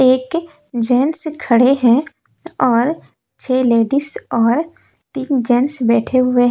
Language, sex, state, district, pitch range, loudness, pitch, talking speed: Hindi, female, Jharkhand, Deoghar, 240-290 Hz, -15 LUFS, 255 Hz, 120 wpm